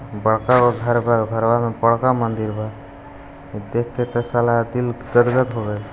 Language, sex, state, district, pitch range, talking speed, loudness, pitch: Hindi, male, Bihar, Gopalganj, 115-125 Hz, 205 wpm, -19 LUFS, 120 Hz